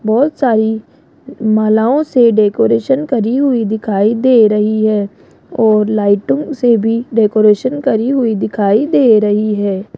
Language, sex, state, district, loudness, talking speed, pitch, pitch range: Hindi, female, Rajasthan, Jaipur, -12 LUFS, 130 wpm, 220 Hz, 210-255 Hz